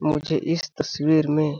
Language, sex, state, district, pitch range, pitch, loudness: Hindi, male, Chhattisgarh, Balrampur, 150-155 Hz, 150 Hz, -23 LUFS